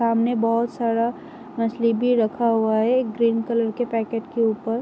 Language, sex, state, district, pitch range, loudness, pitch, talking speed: Hindi, female, Uttar Pradesh, Varanasi, 225-235 Hz, -22 LUFS, 230 Hz, 185 wpm